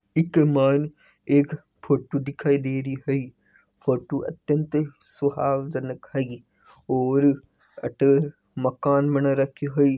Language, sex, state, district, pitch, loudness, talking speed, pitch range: Hindi, male, Rajasthan, Nagaur, 140 Hz, -24 LUFS, 115 wpm, 135-145 Hz